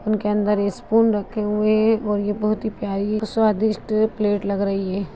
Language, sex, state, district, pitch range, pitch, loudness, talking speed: Hindi, female, Bihar, Begusarai, 205-215 Hz, 210 Hz, -21 LUFS, 185 wpm